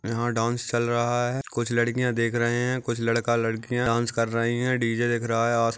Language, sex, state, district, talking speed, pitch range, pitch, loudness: Hindi, male, Maharashtra, Aurangabad, 230 wpm, 115-120 Hz, 120 Hz, -25 LUFS